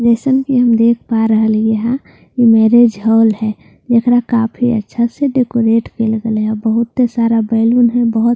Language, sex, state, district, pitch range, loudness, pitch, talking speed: Hindi, female, Bihar, Katihar, 225-240 Hz, -13 LUFS, 230 Hz, 180 wpm